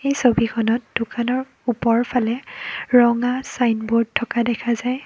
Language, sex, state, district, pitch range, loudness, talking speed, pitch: Assamese, female, Assam, Kamrup Metropolitan, 230-250 Hz, -20 LUFS, 95 wpm, 240 Hz